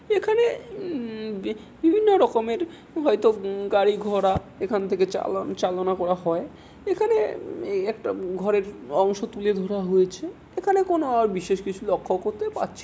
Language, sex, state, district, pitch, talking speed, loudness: Bengali, male, West Bengal, Jalpaiguri, 220 Hz, 135 wpm, -24 LUFS